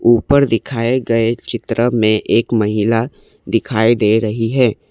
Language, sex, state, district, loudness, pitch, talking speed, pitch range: Hindi, male, Assam, Kamrup Metropolitan, -15 LUFS, 115 Hz, 135 wpm, 110-120 Hz